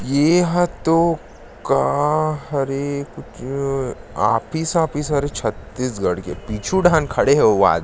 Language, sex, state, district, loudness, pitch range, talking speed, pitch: Chhattisgarhi, male, Chhattisgarh, Sarguja, -19 LUFS, 130-160 Hz, 120 wpm, 145 Hz